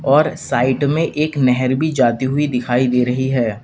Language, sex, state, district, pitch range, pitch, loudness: Hindi, male, Uttar Pradesh, Lalitpur, 125-145 Hz, 130 Hz, -17 LUFS